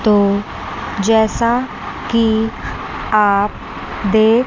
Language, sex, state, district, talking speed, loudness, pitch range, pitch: Hindi, female, Chandigarh, Chandigarh, 65 wpm, -17 LUFS, 205-230 Hz, 220 Hz